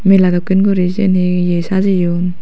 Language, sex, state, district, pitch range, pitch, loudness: Chakma, female, Tripura, Dhalai, 180-195 Hz, 185 Hz, -13 LUFS